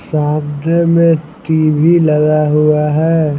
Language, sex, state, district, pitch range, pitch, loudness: Hindi, male, Bihar, Patna, 150-165 Hz, 155 Hz, -12 LUFS